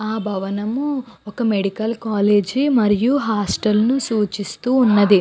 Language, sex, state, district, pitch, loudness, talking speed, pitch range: Telugu, female, Andhra Pradesh, Guntur, 215 Hz, -19 LUFS, 115 wpm, 205-245 Hz